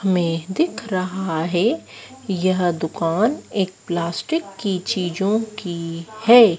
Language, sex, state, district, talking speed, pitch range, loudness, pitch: Hindi, female, Madhya Pradesh, Dhar, 110 wpm, 175-215 Hz, -21 LUFS, 190 Hz